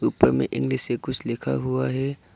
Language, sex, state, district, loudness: Hindi, male, Arunachal Pradesh, Lower Dibang Valley, -25 LUFS